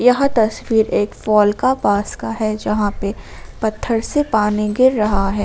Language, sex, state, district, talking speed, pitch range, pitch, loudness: Hindi, female, Jharkhand, Ranchi, 175 wpm, 210-230 Hz, 215 Hz, -17 LUFS